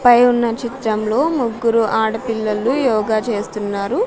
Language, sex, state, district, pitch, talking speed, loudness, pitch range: Telugu, female, Andhra Pradesh, Sri Satya Sai, 230 Hz, 105 wpm, -18 LUFS, 215-245 Hz